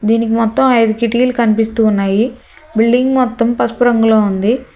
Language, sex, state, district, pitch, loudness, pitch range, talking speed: Telugu, female, Telangana, Hyderabad, 230 Hz, -13 LUFS, 220-245 Hz, 140 wpm